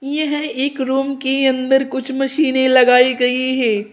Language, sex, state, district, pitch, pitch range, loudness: Hindi, female, Uttar Pradesh, Saharanpur, 265 Hz, 255-270 Hz, -16 LUFS